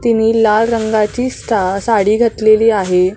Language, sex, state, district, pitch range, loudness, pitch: Marathi, female, Maharashtra, Mumbai Suburban, 210-230 Hz, -13 LUFS, 220 Hz